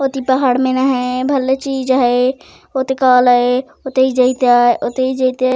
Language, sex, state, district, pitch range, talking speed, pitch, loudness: Chhattisgarhi, female, Chhattisgarh, Raigarh, 250-265 Hz, 150 wpm, 260 Hz, -14 LUFS